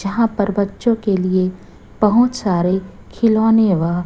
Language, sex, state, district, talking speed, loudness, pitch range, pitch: Hindi, female, Chhattisgarh, Raipur, 135 wpm, -17 LUFS, 185-225 Hz, 200 Hz